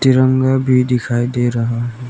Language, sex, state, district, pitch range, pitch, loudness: Hindi, male, Arunachal Pradesh, Lower Dibang Valley, 120-130 Hz, 125 Hz, -15 LUFS